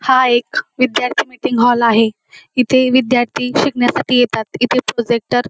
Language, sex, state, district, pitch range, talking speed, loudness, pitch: Marathi, female, Maharashtra, Dhule, 240-255 Hz, 140 wpm, -15 LUFS, 245 Hz